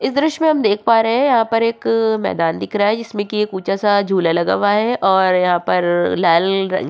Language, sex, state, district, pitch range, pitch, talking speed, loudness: Hindi, female, Uttarakhand, Tehri Garhwal, 185-225 Hz, 205 Hz, 250 wpm, -16 LUFS